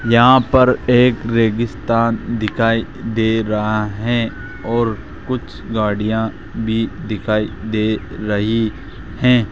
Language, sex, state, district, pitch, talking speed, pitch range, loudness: Hindi, male, Rajasthan, Jaipur, 110 Hz, 100 wpm, 105-115 Hz, -17 LUFS